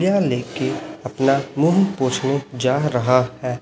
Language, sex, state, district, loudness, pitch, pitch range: Hindi, male, Chhattisgarh, Raipur, -20 LUFS, 135 Hz, 125-145 Hz